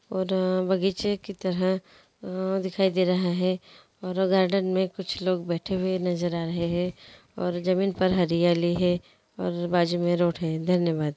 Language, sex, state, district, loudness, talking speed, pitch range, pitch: Hindi, female, Andhra Pradesh, Guntur, -26 LUFS, 165 wpm, 175-190 Hz, 185 Hz